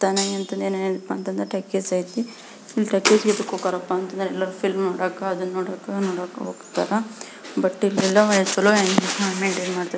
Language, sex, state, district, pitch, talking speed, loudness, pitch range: Kannada, female, Karnataka, Belgaum, 195 Hz, 100 wpm, -22 LUFS, 185-200 Hz